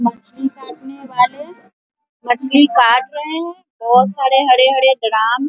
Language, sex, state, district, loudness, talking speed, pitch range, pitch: Hindi, female, Bihar, Vaishali, -14 LUFS, 130 wpm, 245-285 Hz, 265 Hz